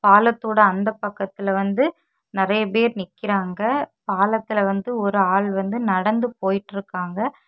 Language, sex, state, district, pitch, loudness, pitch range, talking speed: Tamil, female, Tamil Nadu, Kanyakumari, 205 Hz, -21 LUFS, 195-225 Hz, 110 wpm